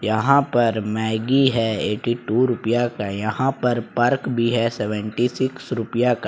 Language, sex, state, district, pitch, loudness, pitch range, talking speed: Hindi, male, Jharkhand, Ranchi, 120 Hz, -21 LUFS, 110-125 Hz, 145 wpm